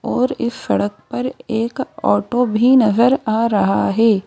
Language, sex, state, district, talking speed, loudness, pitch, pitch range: Hindi, female, Madhya Pradesh, Bhopal, 155 wpm, -17 LUFS, 235 Hz, 220-250 Hz